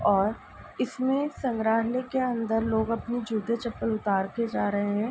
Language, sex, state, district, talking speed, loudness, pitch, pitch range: Hindi, female, Uttar Pradesh, Ghazipur, 165 wpm, -28 LUFS, 230 Hz, 215-240 Hz